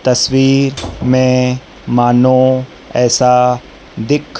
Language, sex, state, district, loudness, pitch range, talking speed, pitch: Hindi, male, Madhya Pradesh, Dhar, -12 LUFS, 125-130 Hz, 70 wpm, 130 Hz